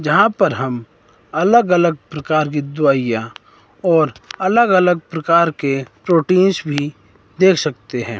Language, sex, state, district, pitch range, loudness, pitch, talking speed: Hindi, male, Himachal Pradesh, Shimla, 135-180 Hz, -16 LUFS, 155 Hz, 130 wpm